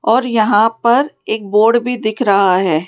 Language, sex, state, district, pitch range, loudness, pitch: Hindi, female, Rajasthan, Jaipur, 205-240 Hz, -14 LUFS, 220 Hz